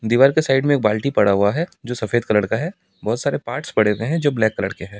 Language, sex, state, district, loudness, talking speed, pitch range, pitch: Hindi, male, Delhi, New Delhi, -19 LUFS, 290 wpm, 105-140 Hz, 115 Hz